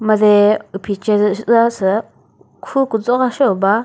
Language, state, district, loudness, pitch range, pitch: Chakhesang, Nagaland, Dimapur, -15 LUFS, 205-235 Hz, 215 Hz